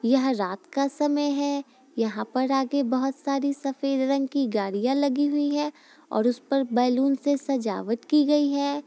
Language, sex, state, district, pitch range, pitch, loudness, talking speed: Hindi, female, Bihar, Gopalganj, 255-285 Hz, 275 Hz, -25 LUFS, 175 wpm